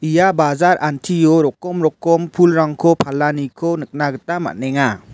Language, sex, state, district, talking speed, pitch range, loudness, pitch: Garo, male, Meghalaya, West Garo Hills, 115 wpm, 145-170 Hz, -16 LUFS, 160 Hz